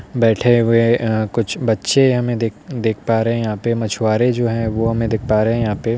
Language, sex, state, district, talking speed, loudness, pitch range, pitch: Hindi, male, Uttar Pradesh, Hamirpur, 260 wpm, -17 LUFS, 110-120 Hz, 115 Hz